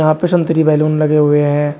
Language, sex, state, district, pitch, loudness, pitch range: Hindi, male, Uttar Pradesh, Shamli, 155 Hz, -13 LUFS, 150-160 Hz